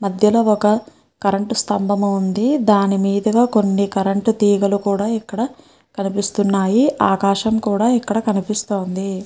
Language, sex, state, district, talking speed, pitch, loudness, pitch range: Telugu, female, Andhra Pradesh, Srikakulam, 115 wpm, 205 Hz, -17 LUFS, 195-220 Hz